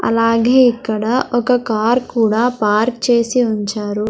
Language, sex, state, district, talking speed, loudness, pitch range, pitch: Telugu, female, Andhra Pradesh, Sri Satya Sai, 115 wpm, -15 LUFS, 215-245 Hz, 230 Hz